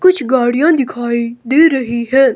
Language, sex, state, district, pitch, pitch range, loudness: Hindi, male, Himachal Pradesh, Shimla, 260 Hz, 235-285 Hz, -13 LUFS